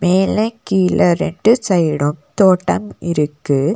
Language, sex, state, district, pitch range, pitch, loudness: Tamil, female, Tamil Nadu, Nilgiris, 145-190 Hz, 175 Hz, -16 LUFS